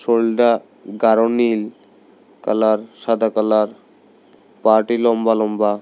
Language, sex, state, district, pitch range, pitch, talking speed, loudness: Bengali, male, Tripura, South Tripura, 110-115 Hz, 110 Hz, 95 wpm, -18 LUFS